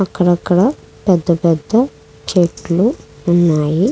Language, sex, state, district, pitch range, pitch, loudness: Telugu, female, Andhra Pradesh, Krishna, 170-195 Hz, 175 Hz, -15 LUFS